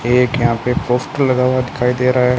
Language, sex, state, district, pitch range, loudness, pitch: Hindi, male, Rajasthan, Bikaner, 125-130 Hz, -16 LUFS, 125 Hz